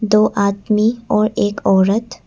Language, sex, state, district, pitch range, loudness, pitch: Hindi, female, Arunachal Pradesh, Papum Pare, 200-215 Hz, -16 LUFS, 215 Hz